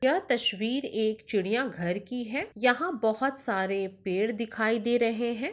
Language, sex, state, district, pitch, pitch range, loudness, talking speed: Hindi, female, Uttar Pradesh, Etah, 230 Hz, 215-250 Hz, -28 LUFS, 165 wpm